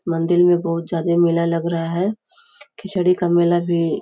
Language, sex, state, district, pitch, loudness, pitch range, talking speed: Hindi, female, Uttar Pradesh, Gorakhpur, 170 Hz, -19 LUFS, 170-180 Hz, 195 wpm